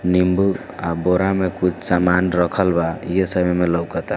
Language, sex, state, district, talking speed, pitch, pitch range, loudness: Hindi, male, Bihar, East Champaran, 185 wpm, 90 Hz, 90-95 Hz, -19 LUFS